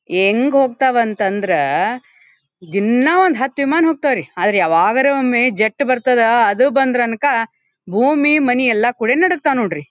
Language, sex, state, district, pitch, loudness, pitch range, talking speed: Kannada, female, Karnataka, Dharwad, 250 Hz, -15 LUFS, 215-275 Hz, 135 wpm